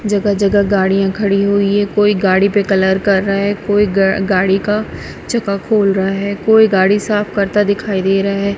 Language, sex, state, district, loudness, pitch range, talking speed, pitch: Hindi, female, Punjab, Kapurthala, -14 LUFS, 195-205 Hz, 205 wpm, 200 Hz